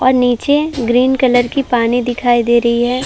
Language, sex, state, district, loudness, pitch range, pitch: Hindi, female, Uttar Pradesh, Varanasi, -13 LUFS, 240-255 Hz, 245 Hz